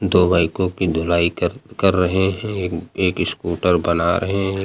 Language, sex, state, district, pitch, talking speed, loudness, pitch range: Hindi, male, Uttar Pradesh, Lucknow, 90 Hz, 180 wpm, -19 LUFS, 85-95 Hz